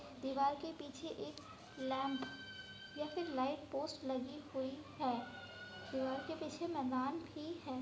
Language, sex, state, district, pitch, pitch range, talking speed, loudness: Hindi, female, Bihar, Kishanganj, 280 Hz, 265-305 Hz, 140 wpm, -43 LUFS